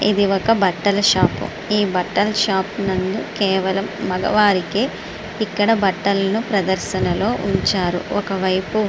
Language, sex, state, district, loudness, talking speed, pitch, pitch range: Telugu, male, Andhra Pradesh, Srikakulam, -19 LUFS, 95 wpm, 200 Hz, 190-210 Hz